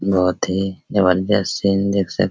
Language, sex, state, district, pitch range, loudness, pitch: Hindi, male, Bihar, Araria, 90-100 Hz, -19 LUFS, 95 Hz